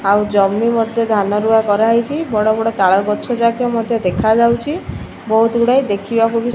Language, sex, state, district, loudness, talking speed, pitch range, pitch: Odia, female, Odisha, Malkangiri, -15 LUFS, 165 wpm, 210-235 Hz, 225 Hz